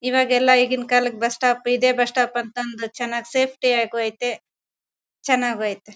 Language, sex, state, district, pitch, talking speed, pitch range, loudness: Kannada, female, Karnataka, Bellary, 245 Hz, 160 wpm, 235-255 Hz, -20 LUFS